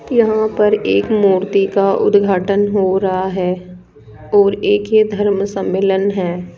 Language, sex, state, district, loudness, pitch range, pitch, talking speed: Hindi, female, Rajasthan, Jaipur, -15 LUFS, 185-205 Hz, 195 Hz, 135 wpm